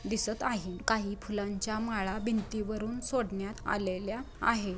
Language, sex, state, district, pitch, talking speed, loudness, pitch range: Marathi, female, Maharashtra, Dhule, 215 Hz, 115 wpm, -33 LUFS, 200-225 Hz